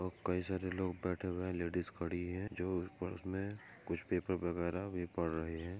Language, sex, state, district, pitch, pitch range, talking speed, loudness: Hindi, male, Maharashtra, Solapur, 90 Hz, 85-95 Hz, 205 wpm, -40 LUFS